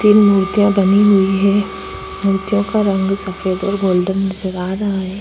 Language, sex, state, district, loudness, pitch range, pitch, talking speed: Hindi, female, Uttar Pradesh, Budaun, -15 LUFS, 190-200 Hz, 195 Hz, 175 wpm